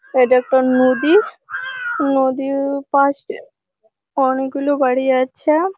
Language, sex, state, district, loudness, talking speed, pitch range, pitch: Bengali, female, West Bengal, Malda, -17 LUFS, 95 wpm, 260-310 Hz, 275 Hz